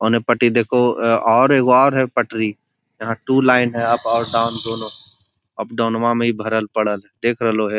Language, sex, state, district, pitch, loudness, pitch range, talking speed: Magahi, male, Bihar, Gaya, 115 Hz, -17 LUFS, 110-120 Hz, 205 wpm